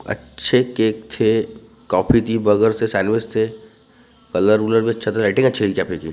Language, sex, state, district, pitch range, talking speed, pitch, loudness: Hindi, male, Maharashtra, Gondia, 105-115 Hz, 165 wpm, 110 Hz, -18 LUFS